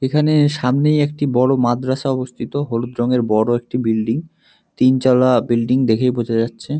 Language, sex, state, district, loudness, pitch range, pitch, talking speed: Bengali, male, West Bengal, North 24 Parganas, -17 LUFS, 120-140 Hz, 125 Hz, 160 wpm